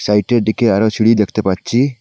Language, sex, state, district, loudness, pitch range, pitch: Bengali, male, Assam, Hailakandi, -14 LUFS, 105-120 Hz, 110 Hz